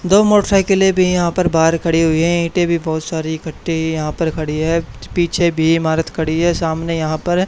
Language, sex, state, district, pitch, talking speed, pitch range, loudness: Hindi, male, Haryana, Charkhi Dadri, 165 Hz, 210 wpm, 160-175 Hz, -16 LUFS